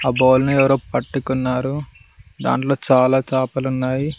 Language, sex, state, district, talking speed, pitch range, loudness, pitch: Telugu, male, Telangana, Mahabubabad, 130 wpm, 130-135 Hz, -18 LUFS, 130 Hz